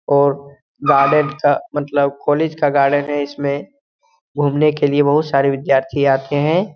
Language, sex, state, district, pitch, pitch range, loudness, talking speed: Hindi, male, Bihar, Lakhisarai, 145 Hz, 140-150 Hz, -16 LUFS, 150 wpm